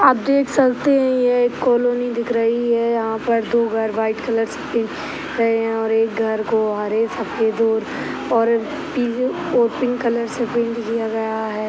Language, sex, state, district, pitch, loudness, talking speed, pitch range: Hindi, female, Uttar Pradesh, Gorakhpur, 230 Hz, -19 LUFS, 190 wpm, 225-245 Hz